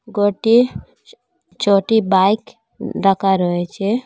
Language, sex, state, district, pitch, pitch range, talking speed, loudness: Bengali, female, Assam, Hailakandi, 205 Hz, 195-225 Hz, 75 wpm, -17 LUFS